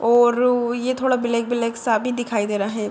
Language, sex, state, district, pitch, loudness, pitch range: Hindi, female, Uttar Pradesh, Deoria, 240 Hz, -20 LUFS, 225-245 Hz